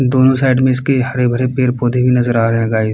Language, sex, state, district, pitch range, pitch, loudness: Hindi, male, Bihar, Kishanganj, 120-130 Hz, 125 Hz, -14 LUFS